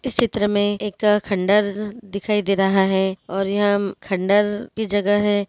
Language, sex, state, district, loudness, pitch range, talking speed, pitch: Hindi, female, Maharashtra, Dhule, -20 LUFS, 195-210 Hz, 165 wpm, 205 Hz